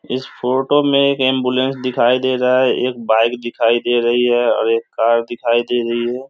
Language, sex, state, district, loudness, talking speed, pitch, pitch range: Hindi, male, Bihar, Samastipur, -16 LUFS, 210 wpm, 125 Hz, 120-130 Hz